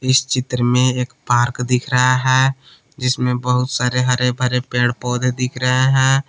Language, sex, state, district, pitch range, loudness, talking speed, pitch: Hindi, male, Jharkhand, Palamu, 125-130 Hz, -17 LUFS, 170 wpm, 125 Hz